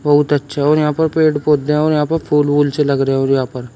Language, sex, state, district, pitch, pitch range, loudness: Hindi, male, Uttar Pradesh, Shamli, 145 Hz, 140-150 Hz, -15 LUFS